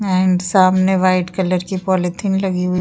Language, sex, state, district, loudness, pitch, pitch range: Hindi, female, Uttar Pradesh, Jyotiba Phule Nagar, -16 LUFS, 185 Hz, 180-190 Hz